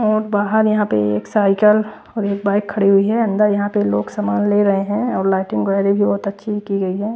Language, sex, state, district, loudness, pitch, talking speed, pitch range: Hindi, female, Bihar, West Champaran, -17 LUFS, 205 Hz, 235 wpm, 195-210 Hz